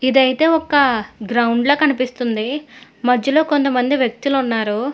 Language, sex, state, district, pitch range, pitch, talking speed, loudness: Telugu, female, Telangana, Hyderabad, 240-285 Hz, 260 Hz, 95 wpm, -17 LUFS